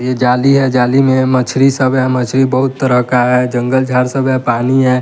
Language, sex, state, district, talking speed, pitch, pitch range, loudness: Hindi, male, Bihar, West Champaran, 225 wpm, 130 Hz, 125-130 Hz, -12 LUFS